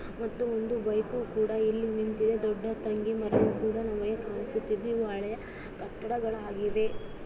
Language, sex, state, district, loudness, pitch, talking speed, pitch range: Kannada, female, Karnataka, Dakshina Kannada, -31 LUFS, 220 Hz, 60 wpm, 215-225 Hz